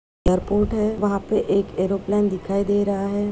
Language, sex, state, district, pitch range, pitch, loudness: Hindi, female, Uttar Pradesh, Muzaffarnagar, 195-205 Hz, 200 Hz, -22 LUFS